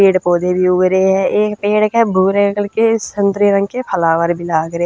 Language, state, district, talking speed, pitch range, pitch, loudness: Haryanvi, Haryana, Rohtak, 245 wpm, 180-210 Hz, 195 Hz, -14 LUFS